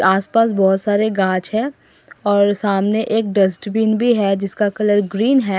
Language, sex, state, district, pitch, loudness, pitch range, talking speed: Hindi, female, Assam, Sonitpur, 205 Hz, -17 LUFS, 195-220 Hz, 170 wpm